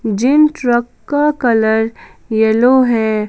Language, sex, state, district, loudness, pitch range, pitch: Hindi, female, Jharkhand, Palamu, -14 LUFS, 220-260 Hz, 235 Hz